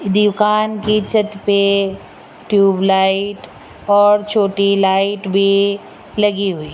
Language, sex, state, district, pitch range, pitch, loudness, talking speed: Hindi, female, Rajasthan, Jaipur, 195-210 Hz, 200 Hz, -15 LUFS, 115 wpm